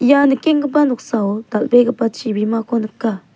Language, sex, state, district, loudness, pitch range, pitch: Garo, female, Meghalaya, South Garo Hills, -17 LUFS, 215-270 Hz, 230 Hz